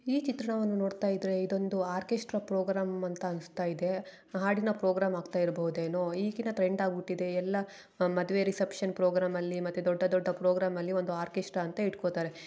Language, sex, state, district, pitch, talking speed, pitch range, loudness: Kannada, female, Karnataka, Chamarajanagar, 185 Hz, 150 wpm, 180-195 Hz, -32 LUFS